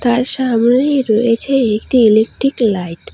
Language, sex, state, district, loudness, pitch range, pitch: Bengali, female, West Bengal, Alipurduar, -14 LUFS, 220-260 Hz, 235 Hz